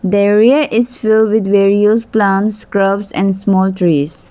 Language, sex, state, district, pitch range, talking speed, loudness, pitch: English, female, Arunachal Pradesh, Lower Dibang Valley, 195-220 Hz, 155 wpm, -13 LUFS, 200 Hz